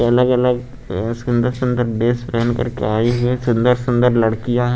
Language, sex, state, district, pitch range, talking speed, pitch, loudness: Hindi, male, Chandigarh, Chandigarh, 115-125 Hz, 150 wpm, 120 Hz, -18 LUFS